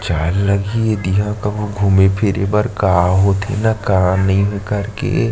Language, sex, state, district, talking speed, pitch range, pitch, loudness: Chhattisgarhi, male, Chhattisgarh, Sarguja, 160 wpm, 95-105 Hz, 100 Hz, -16 LUFS